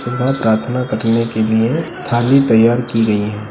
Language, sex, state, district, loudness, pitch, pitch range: Hindi, male, Bihar, Sitamarhi, -15 LUFS, 115 Hz, 110-125 Hz